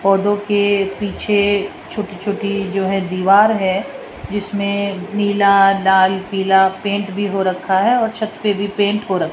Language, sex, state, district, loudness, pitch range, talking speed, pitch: Hindi, female, Rajasthan, Jaipur, -17 LUFS, 195-205 Hz, 165 wpm, 200 Hz